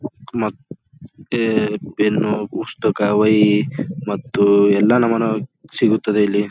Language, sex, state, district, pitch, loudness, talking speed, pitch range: Kannada, male, Karnataka, Bijapur, 105 Hz, -18 LUFS, 85 wpm, 105-115 Hz